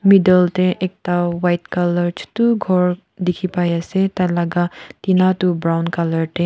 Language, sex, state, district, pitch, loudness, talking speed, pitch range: Nagamese, female, Nagaland, Kohima, 180 Hz, -18 LUFS, 160 wpm, 175-185 Hz